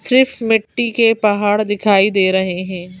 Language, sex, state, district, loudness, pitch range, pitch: Hindi, female, Madhya Pradesh, Bhopal, -15 LUFS, 190-225 Hz, 210 Hz